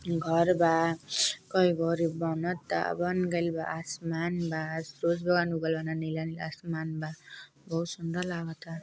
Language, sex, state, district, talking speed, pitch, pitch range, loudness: Bhojpuri, female, Uttar Pradesh, Deoria, 145 wpm, 165 Hz, 160-170 Hz, -30 LUFS